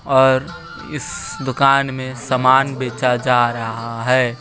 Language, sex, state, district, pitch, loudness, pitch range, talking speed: Hindi, female, Bihar, West Champaran, 130 Hz, -17 LUFS, 125-135 Hz, 120 wpm